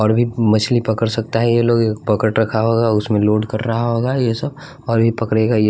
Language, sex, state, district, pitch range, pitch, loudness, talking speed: Hindi, male, Bihar, West Champaran, 110-115 Hz, 115 Hz, -17 LUFS, 230 wpm